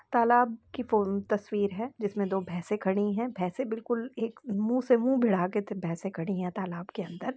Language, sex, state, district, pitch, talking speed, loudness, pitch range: Hindi, female, Uttar Pradesh, Jalaun, 210 Hz, 180 wpm, -30 LUFS, 190-235 Hz